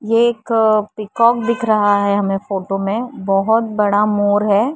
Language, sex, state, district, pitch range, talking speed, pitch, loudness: Hindi, female, Maharashtra, Mumbai Suburban, 200-230 Hz, 165 wpm, 210 Hz, -16 LUFS